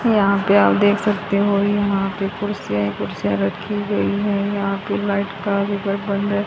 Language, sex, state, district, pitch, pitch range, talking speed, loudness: Hindi, female, Haryana, Rohtak, 200 Hz, 195-205 Hz, 185 wpm, -20 LUFS